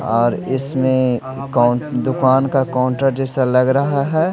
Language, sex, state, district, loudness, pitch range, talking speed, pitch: Hindi, male, Odisha, Malkangiri, -17 LUFS, 125-135 Hz, 140 wpm, 130 Hz